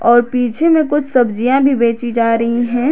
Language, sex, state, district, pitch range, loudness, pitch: Hindi, female, Jharkhand, Garhwa, 235-275 Hz, -14 LUFS, 245 Hz